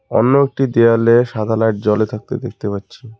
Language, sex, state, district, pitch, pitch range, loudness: Bengali, male, West Bengal, Cooch Behar, 115 Hz, 110-125 Hz, -16 LUFS